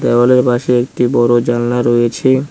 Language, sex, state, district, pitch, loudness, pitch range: Bengali, male, West Bengal, Cooch Behar, 120 Hz, -13 LUFS, 120-125 Hz